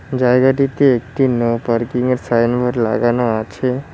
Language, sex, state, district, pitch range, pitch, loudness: Bengali, male, West Bengal, Cooch Behar, 115-130 Hz, 125 Hz, -16 LUFS